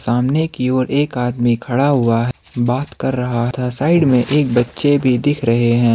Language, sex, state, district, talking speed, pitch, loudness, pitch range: Hindi, male, Jharkhand, Ranchi, 200 wpm, 125 Hz, -16 LUFS, 120-145 Hz